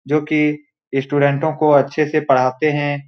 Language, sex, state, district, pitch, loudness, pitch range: Hindi, male, Bihar, Saran, 145 Hz, -17 LUFS, 140-155 Hz